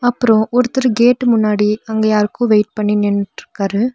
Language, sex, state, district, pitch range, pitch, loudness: Tamil, female, Tamil Nadu, Nilgiris, 210-245 Hz, 220 Hz, -15 LUFS